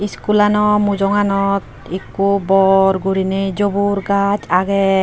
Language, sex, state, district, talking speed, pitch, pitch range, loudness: Chakma, female, Tripura, Unakoti, 95 wpm, 195 Hz, 195-205 Hz, -16 LUFS